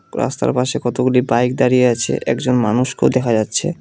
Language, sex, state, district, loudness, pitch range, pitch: Bengali, male, West Bengal, Cooch Behar, -16 LUFS, 120-130 Hz, 125 Hz